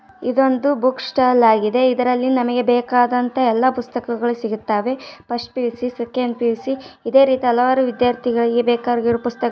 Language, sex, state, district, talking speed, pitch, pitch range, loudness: Kannada, female, Karnataka, Dharwad, 125 wpm, 245 Hz, 240-255 Hz, -18 LUFS